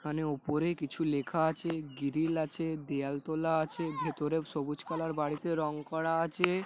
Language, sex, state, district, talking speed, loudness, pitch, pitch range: Bengali, male, West Bengal, North 24 Parganas, 160 wpm, -33 LUFS, 155 Hz, 150-165 Hz